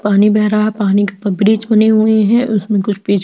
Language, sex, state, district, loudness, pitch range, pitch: Hindi, female, Chhattisgarh, Jashpur, -13 LUFS, 200-215 Hz, 210 Hz